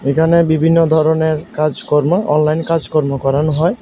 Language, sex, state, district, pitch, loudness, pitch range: Bengali, male, Tripura, West Tripura, 155 Hz, -14 LUFS, 150-165 Hz